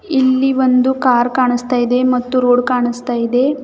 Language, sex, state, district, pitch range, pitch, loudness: Kannada, female, Karnataka, Bidar, 245-260 Hz, 250 Hz, -14 LUFS